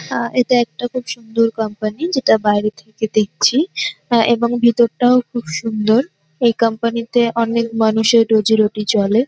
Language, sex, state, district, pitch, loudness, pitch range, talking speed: Bengali, female, West Bengal, North 24 Parganas, 230 Hz, -16 LUFS, 220-240 Hz, 140 wpm